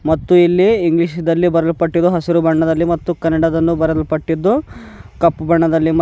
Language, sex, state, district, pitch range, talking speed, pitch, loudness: Kannada, female, Karnataka, Bidar, 160-170 Hz, 140 wpm, 165 Hz, -15 LUFS